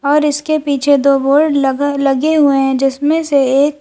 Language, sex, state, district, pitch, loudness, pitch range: Hindi, female, Uttar Pradesh, Lalitpur, 285 Hz, -13 LUFS, 275-295 Hz